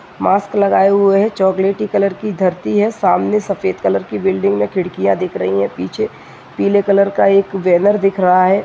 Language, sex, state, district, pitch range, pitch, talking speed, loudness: Hindi, male, Uttar Pradesh, Jyotiba Phule Nagar, 180-200 Hz, 195 Hz, 195 wpm, -15 LUFS